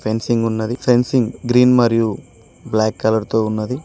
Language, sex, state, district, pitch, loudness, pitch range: Telugu, male, Telangana, Mahabubabad, 115 Hz, -17 LUFS, 110-125 Hz